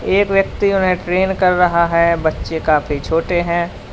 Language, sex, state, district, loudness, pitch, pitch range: Hindi, male, Uttar Pradesh, Lalitpur, -16 LUFS, 170 Hz, 160-185 Hz